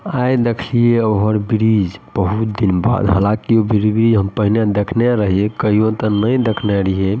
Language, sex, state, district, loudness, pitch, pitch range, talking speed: Maithili, male, Bihar, Madhepura, -16 LUFS, 105 Hz, 100-115 Hz, 160 wpm